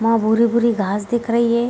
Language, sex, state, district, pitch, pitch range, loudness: Hindi, female, Bihar, Bhagalpur, 230 Hz, 220-235 Hz, -18 LUFS